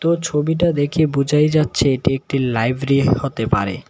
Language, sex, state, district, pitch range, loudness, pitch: Bengali, male, Tripura, West Tripura, 135-155 Hz, -18 LUFS, 145 Hz